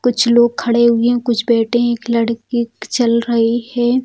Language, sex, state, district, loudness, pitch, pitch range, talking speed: Hindi, female, Bihar, Jamui, -15 LUFS, 235 Hz, 230-240 Hz, 190 wpm